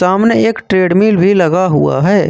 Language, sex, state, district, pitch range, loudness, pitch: Hindi, male, Jharkhand, Ranchi, 180-200 Hz, -11 LUFS, 185 Hz